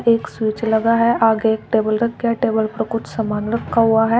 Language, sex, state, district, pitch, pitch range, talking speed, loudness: Hindi, female, Uttar Pradesh, Shamli, 225 Hz, 220-230 Hz, 230 wpm, -18 LUFS